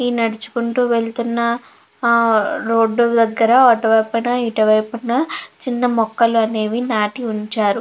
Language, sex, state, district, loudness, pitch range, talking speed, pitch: Telugu, female, Andhra Pradesh, Krishna, -17 LUFS, 225-240 Hz, 115 wpm, 230 Hz